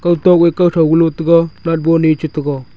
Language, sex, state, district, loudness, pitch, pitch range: Wancho, male, Arunachal Pradesh, Longding, -13 LUFS, 165 Hz, 160-170 Hz